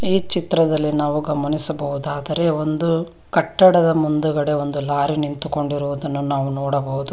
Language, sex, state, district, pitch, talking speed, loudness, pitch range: Kannada, female, Karnataka, Bangalore, 150 Hz, 100 wpm, -19 LUFS, 145-165 Hz